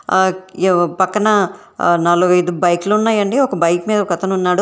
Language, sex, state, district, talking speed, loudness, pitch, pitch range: Telugu, female, Telangana, Hyderabad, 145 wpm, -15 LUFS, 185 Hz, 175-205 Hz